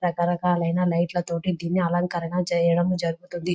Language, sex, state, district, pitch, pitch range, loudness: Telugu, female, Telangana, Nalgonda, 175 Hz, 170-180 Hz, -24 LUFS